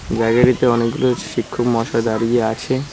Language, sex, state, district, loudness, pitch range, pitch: Bengali, male, West Bengal, Cooch Behar, -17 LUFS, 115-125 Hz, 115 Hz